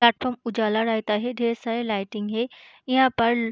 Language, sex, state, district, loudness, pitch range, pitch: Hindi, female, Bihar, Saharsa, -24 LUFS, 220-240 Hz, 230 Hz